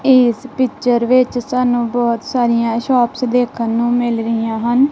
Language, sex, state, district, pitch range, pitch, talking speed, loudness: Punjabi, female, Punjab, Kapurthala, 235-250 Hz, 240 Hz, 145 wpm, -16 LUFS